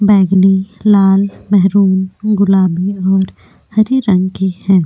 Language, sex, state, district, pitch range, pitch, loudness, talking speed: Hindi, female, Uttar Pradesh, Jyotiba Phule Nagar, 190-200 Hz, 195 Hz, -12 LUFS, 110 wpm